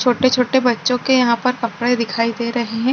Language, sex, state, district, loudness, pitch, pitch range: Hindi, female, Chhattisgarh, Bilaspur, -17 LUFS, 245 Hz, 235-250 Hz